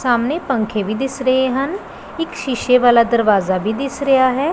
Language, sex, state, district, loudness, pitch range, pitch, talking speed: Punjabi, female, Punjab, Pathankot, -17 LUFS, 235-275 Hz, 255 Hz, 185 wpm